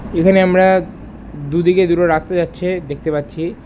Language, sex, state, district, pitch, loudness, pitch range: Bengali, male, West Bengal, Alipurduar, 175 Hz, -15 LUFS, 160-185 Hz